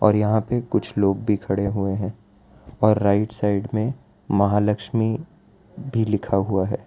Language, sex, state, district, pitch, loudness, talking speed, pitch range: Hindi, male, Gujarat, Valsad, 105 Hz, -22 LUFS, 150 wpm, 100-110 Hz